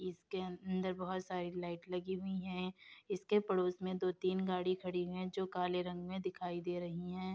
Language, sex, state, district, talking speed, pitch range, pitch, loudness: Hindi, female, Uttar Pradesh, Etah, 190 wpm, 180-185 Hz, 185 Hz, -40 LUFS